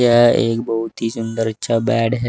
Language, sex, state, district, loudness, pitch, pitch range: Hindi, male, Uttar Pradesh, Shamli, -18 LUFS, 115 Hz, 115-120 Hz